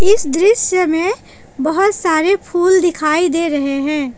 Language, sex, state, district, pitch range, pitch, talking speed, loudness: Hindi, female, Jharkhand, Palamu, 305-375 Hz, 345 Hz, 145 wpm, -15 LUFS